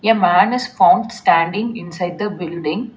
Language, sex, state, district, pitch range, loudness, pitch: English, female, Telangana, Hyderabad, 175-235 Hz, -17 LUFS, 210 Hz